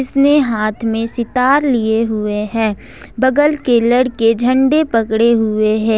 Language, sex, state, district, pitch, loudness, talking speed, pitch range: Hindi, female, Jharkhand, Ranchi, 230 Hz, -14 LUFS, 140 wpm, 220-260 Hz